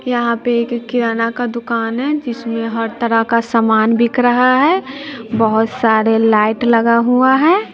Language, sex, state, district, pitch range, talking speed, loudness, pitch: Hindi, female, Bihar, West Champaran, 230-245 Hz, 165 wpm, -14 LUFS, 235 Hz